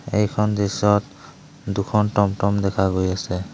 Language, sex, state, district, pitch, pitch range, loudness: Assamese, male, Assam, Sonitpur, 100 Hz, 95-105 Hz, -21 LUFS